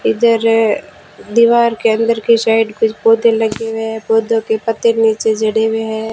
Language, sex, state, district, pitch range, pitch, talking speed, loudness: Hindi, female, Rajasthan, Bikaner, 220-230 Hz, 225 Hz, 175 wpm, -14 LUFS